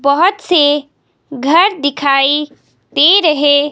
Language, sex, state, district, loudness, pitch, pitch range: Hindi, female, Himachal Pradesh, Shimla, -12 LUFS, 290 Hz, 285-330 Hz